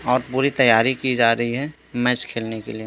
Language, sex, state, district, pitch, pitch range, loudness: Hindi, male, Chhattisgarh, Korba, 125 Hz, 115-130 Hz, -20 LUFS